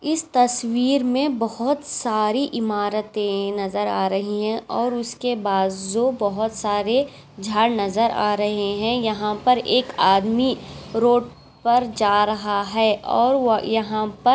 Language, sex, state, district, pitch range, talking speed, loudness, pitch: Hindi, female, Maharashtra, Aurangabad, 205-245 Hz, 140 wpm, -21 LUFS, 220 Hz